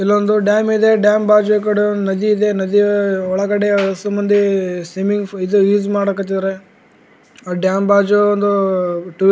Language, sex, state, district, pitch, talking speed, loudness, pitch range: Kannada, male, Karnataka, Gulbarga, 205 Hz, 165 wpm, -15 LUFS, 195-210 Hz